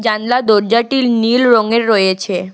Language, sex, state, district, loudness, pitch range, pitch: Bengali, female, West Bengal, Alipurduar, -13 LUFS, 210-240 Hz, 225 Hz